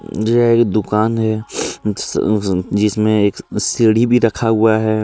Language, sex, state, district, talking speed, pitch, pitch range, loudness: Hindi, male, Jharkhand, Deoghar, 165 wpm, 110 Hz, 105-115 Hz, -16 LUFS